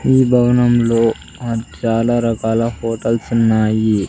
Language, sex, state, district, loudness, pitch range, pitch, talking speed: Telugu, male, Andhra Pradesh, Sri Satya Sai, -16 LUFS, 115-120 Hz, 115 Hz, 100 wpm